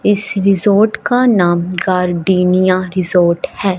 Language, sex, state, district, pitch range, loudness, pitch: Hindi, female, Punjab, Fazilka, 180-205 Hz, -13 LUFS, 185 Hz